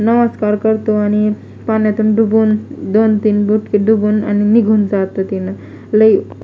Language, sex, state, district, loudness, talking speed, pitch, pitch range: Marathi, female, Maharashtra, Mumbai Suburban, -14 LUFS, 140 wpm, 215 Hz, 210-220 Hz